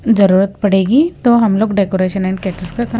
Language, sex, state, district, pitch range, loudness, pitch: Hindi, female, Punjab, Kapurthala, 190-230 Hz, -14 LUFS, 200 Hz